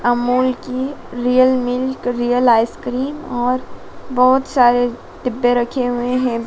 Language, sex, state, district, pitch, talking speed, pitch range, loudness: Hindi, female, Madhya Pradesh, Dhar, 250 Hz, 120 wpm, 245-255 Hz, -17 LUFS